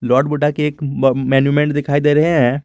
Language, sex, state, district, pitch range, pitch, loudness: Hindi, male, Jharkhand, Garhwa, 135-150 Hz, 145 Hz, -15 LUFS